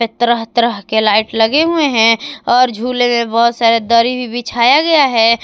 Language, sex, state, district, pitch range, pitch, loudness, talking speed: Hindi, female, Jharkhand, Palamu, 230-250 Hz, 235 Hz, -13 LUFS, 185 wpm